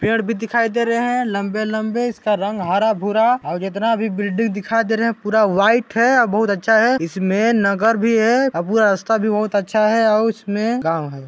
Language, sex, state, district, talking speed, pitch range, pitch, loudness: Chhattisgarhi, male, Chhattisgarh, Balrampur, 215 wpm, 205-230 Hz, 220 Hz, -17 LUFS